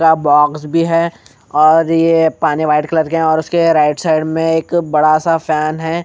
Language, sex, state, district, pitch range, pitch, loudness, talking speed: Hindi, male, Bihar, Katihar, 155-165 Hz, 160 Hz, -13 LUFS, 210 wpm